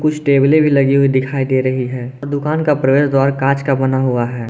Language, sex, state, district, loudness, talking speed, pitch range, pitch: Hindi, male, Jharkhand, Garhwa, -15 LUFS, 255 wpm, 130-145 Hz, 135 Hz